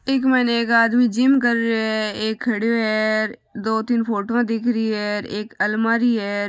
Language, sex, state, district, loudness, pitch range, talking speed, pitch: Marwari, female, Rajasthan, Nagaur, -20 LUFS, 215-240 Hz, 185 wpm, 225 Hz